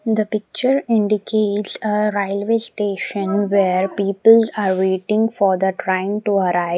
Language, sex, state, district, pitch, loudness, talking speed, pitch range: English, female, Maharashtra, Mumbai Suburban, 205 Hz, -18 LUFS, 135 wpm, 195-215 Hz